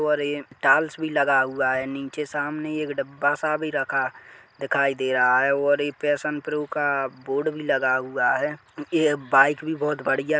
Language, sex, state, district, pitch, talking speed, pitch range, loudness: Hindi, male, Chhattisgarh, Sarguja, 145 Hz, 190 wpm, 135-150 Hz, -23 LUFS